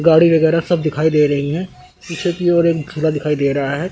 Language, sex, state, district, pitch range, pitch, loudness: Hindi, male, Chandigarh, Chandigarh, 150-170 Hz, 160 Hz, -16 LUFS